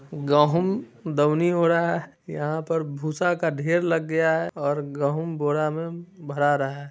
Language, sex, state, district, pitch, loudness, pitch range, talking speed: Hindi, male, Bihar, Muzaffarpur, 155 Hz, -24 LUFS, 145-170 Hz, 175 wpm